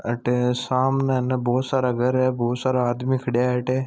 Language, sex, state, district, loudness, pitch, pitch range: Marwari, male, Rajasthan, Nagaur, -22 LUFS, 125 Hz, 125-130 Hz